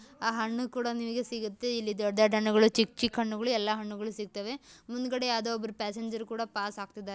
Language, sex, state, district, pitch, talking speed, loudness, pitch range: Kannada, female, Karnataka, Dakshina Kannada, 225 Hz, 185 wpm, -31 LUFS, 215-235 Hz